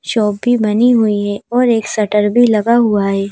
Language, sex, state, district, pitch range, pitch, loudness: Hindi, female, Madhya Pradesh, Bhopal, 205-235 Hz, 215 Hz, -13 LUFS